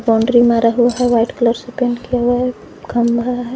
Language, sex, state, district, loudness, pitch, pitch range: Hindi, female, Jharkhand, Garhwa, -15 LUFS, 240 Hz, 235-245 Hz